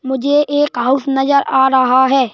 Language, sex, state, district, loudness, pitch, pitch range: Hindi, female, Madhya Pradesh, Bhopal, -13 LUFS, 265 Hz, 260-280 Hz